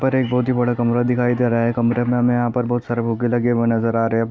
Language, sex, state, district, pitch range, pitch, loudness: Hindi, male, Bihar, Gopalganj, 115-120 Hz, 120 Hz, -19 LUFS